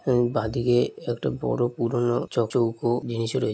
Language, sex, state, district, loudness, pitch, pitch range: Bengali, male, West Bengal, Jalpaiguri, -25 LUFS, 120 Hz, 115-120 Hz